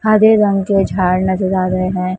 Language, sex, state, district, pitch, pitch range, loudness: Hindi, female, Maharashtra, Mumbai Suburban, 190 Hz, 185-200 Hz, -14 LUFS